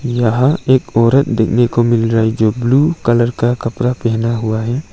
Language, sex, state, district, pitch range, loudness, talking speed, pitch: Hindi, male, Arunachal Pradesh, Longding, 115-125 Hz, -14 LUFS, 195 wpm, 120 Hz